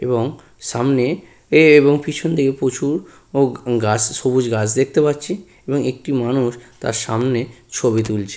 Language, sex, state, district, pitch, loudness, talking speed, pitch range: Bengali, male, West Bengal, Purulia, 130 Hz, -18 LUFS, 145 wpm, 120-145 Hz